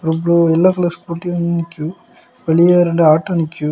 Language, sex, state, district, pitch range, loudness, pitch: Tamil, male, Tamil Nadu, Kanyakumari, 160-175 Hz, -15 LUFS, 170 Hz